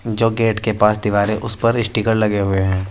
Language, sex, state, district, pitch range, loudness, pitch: Hindi, male, Uttar Pradesh, Saharanpur, 105-115 Hz, -17 LUFS, 110 Hz